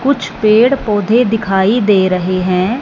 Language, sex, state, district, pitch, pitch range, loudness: Hindi, male, Punjab, Fazilka, 215 Hz, 190-240 Hz, -13 LUFS